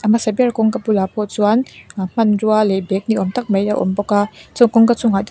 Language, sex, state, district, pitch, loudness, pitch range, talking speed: Mizo, female, Mizoram, Aizawl, 215 Hz, -16 LUFS, 205-225 Hz, 235 wpm